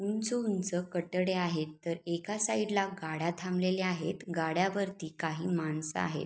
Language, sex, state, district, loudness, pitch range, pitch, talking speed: Marathi, female, Maharashtra, Sindhudurg, -33 LUFS, 165-195 Hz, 180 Hz, 145 wpm